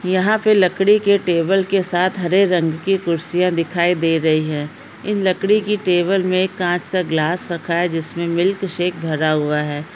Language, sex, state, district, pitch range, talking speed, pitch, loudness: Hindi, female, Bihar, Gaya, 165-190 Hz, 195 wpm, 180 Hz, -18 LUFS